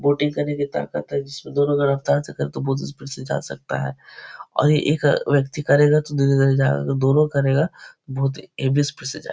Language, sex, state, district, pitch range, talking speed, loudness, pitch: Hindi, male, Uttar Pradesh, Etah, 130-145 Hz, 180 wpm, -21 LUFS, 140 Hz